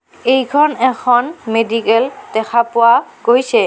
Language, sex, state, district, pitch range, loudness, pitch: Assamese, female, Assam, Kamrup Metropolitan, 230-260 Hz, -14 LUFS, 240 Hz